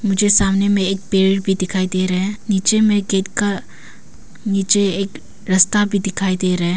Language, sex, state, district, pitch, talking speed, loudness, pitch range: Hindi, female, Arunachal Pradesh, Papum Pare, 195 Hz, 195 wpm, -17 LUFS, 190-205 Hz